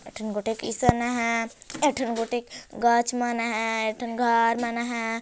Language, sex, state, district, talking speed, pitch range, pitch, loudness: Chhattisgarhi, female, Chhattisgarh, Jashpur, 195 wpm, 225-240 Hz, 235 Hz, -25 LUFS